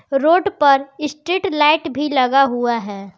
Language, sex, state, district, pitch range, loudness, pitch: Hindi, female, Jharkhand, Garhwa, 265-310 Hz, -17 LUFS, 290 Hz